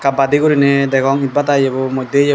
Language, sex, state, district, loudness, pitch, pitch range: Chakma, male, Tripura, Dhalai, -14 LUFS, 140 Hz, 135-145 Hz